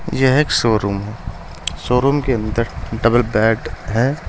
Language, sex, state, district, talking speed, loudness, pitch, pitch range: Hindi, male, Uttar Pradesh, Saharanpur, 125 wpm, -18 LUFS, 115 Hz, 100-125 Hz